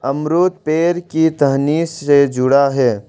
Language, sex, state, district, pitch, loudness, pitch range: Hindi, male, Arunachal Pradesh, Longding, 145 Hz, -15 LUFS, 135-160 Hz